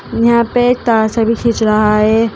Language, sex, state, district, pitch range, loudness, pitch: Hindi, female, Uttar Pradesh, Shamli, 220-235 Hz, -12 LUFS, 230 Hz